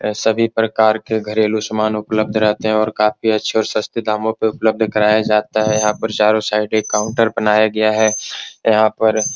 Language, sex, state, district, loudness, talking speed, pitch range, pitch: Hindi, male, Bihar, Supaul, -16 LUFS, 200 wpm, 105-110 Hz, 110 Hz